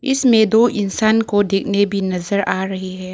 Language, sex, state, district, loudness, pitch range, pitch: Hindi, female, Arunachal Pradesh, Lower Dibang Valley, -17 LUFS, 190-220 Hz, 205 Hz